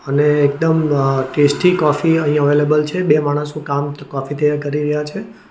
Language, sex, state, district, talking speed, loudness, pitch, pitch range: Gujarati, male, Gujarat, Valsad, 175 wpm, -16 LUFS, 150 Hz, 145-150 Hz